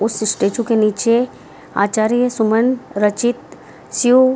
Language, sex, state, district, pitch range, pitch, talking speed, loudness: Hindi, female, Bihar, Darbhanga, 215-245 Hz, 230 Hz, 125 wpm, -17 LUFS